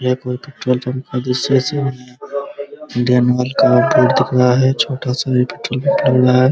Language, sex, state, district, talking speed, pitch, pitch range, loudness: Hindi, male, Bihar, Araria, 155 wpm, 130 Hz, 125-140 Hz, -16 LUFS